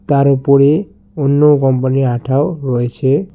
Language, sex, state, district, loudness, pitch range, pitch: Bengali, male, West Bengal, Alipurduar, -13 LUFS, 130-145 Hz, 140 Hz